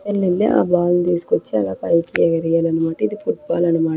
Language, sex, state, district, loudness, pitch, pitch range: Telugu, female, Andhra Pradesh, Krishna, -18 LUFS, 170 Hz, 165-175 Hz